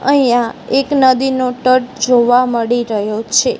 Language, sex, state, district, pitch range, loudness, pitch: Gujarati, female, Gujarat, Gandhinagar, 240-260 Hz, -13 LUFS, 255 Hz